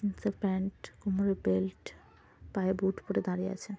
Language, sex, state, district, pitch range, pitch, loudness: Bengali, female, West Bengal, Kolkata, 185-200 Hz, 195 Hz, -33 LUFS